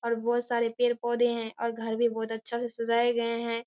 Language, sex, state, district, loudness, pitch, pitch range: Hindi, female, Bihar, Kishanganj, -29 LUFS, 235 Hz, 230-240 Hz